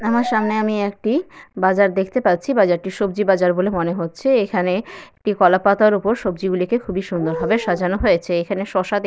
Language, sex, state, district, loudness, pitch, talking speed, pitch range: Bengali, female, West Bengal, Malda, -19 LUFS, 195 Hz, 190 wpm, 185-215 Hz